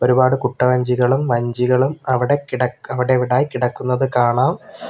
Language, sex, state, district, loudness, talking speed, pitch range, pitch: Malayalam, male, Kerala, Kollam, -18 LUFS, 100 wpm, 125-130 Hz, 125 Hz